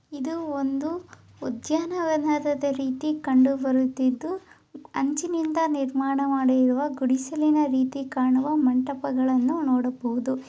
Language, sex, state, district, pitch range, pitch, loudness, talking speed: Kannada, female, Karnataka, Raichur, 260-305 Hz, 275 Hz, -24 LUFS, 80 wpm